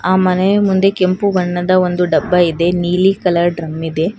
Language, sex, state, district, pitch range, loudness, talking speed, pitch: Kannada, female, Karnataka, Bangalore, 175-185 Hz, -14 LUFS, 155 wpm, 180 Hz